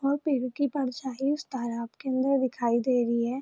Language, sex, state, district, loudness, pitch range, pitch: Hindi, female, Bihar, Purnia, -28 LUFS, 240-275 Hz, 260 Hz